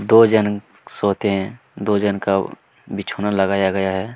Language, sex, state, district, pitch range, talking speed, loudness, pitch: Hindi, male, Chhattisgarh, Kabirdham, 95-105 Hz, 160 wpm, -19 LUFS, 100 Hz